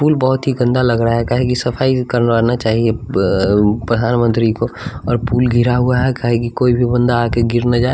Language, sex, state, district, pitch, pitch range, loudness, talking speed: Hindi, male, Bihar, West Champaran, 120 Hz, 115-125 Hz, -15 LUFS, 220 wpm